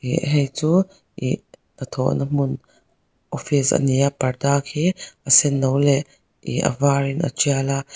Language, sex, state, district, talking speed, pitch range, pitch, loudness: Mizo, female, Mizoram, Aizawl, 180 wpm, 135-145 Hz, 140 Hz, -20 LUFS